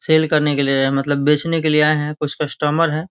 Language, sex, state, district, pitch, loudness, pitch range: Hindi, male, Bihar, Gopalganj, 150 Hz, -17 LUFS, 145-155 Hz